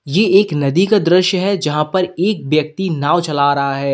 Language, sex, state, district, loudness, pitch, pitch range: Hindi, male, Uttar Pradesh, Lalitpur, -15 LUFS, 175 Hz, 145-190 Hz